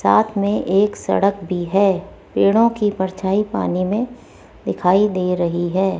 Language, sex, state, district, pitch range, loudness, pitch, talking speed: Hindi, female, Rajasthan, Jaipur, 185-210 Hz, -18 LUFS, 195 Hz, 150 wpm